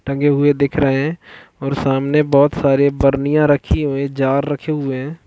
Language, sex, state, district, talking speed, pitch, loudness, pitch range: Hindi, male, Chhattisgarh, Balrampur, 195 wpm, 140 Hz, -16 LUFS, 135-145 Hz